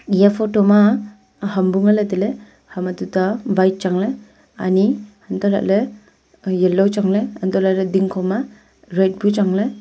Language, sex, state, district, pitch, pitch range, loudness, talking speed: Wancho, female, Arunachal Pradesh, Longding, 200 Hz, 190-210 Hz, -18 LUFS, 215 wpm